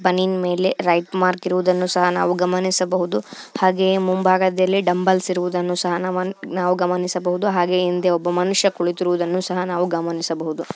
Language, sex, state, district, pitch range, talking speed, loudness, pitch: Kannada, female, Karnataka, Belgaum, 180-185 Hz, 125 wpm, -20 LUFS, 180 Hz